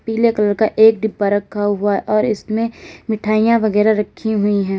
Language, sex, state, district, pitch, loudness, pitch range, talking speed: Hindi, female, Uttar Pradesh, Lalitpur, 215 Hz, -16 LUFS, 205-220 Hz, 185 wpm